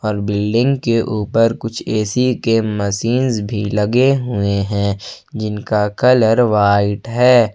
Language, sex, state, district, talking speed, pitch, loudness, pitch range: Hindi, male, Jharkhand, Ranchi, 120 wpm, 110 Hz, -16 LUFS, 105-120 Hz